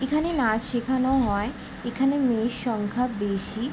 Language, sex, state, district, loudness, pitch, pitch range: Bengali, female, West Bengal, Jalpaiguri, -25 LUFS, 245 Hz, 220-265 Hz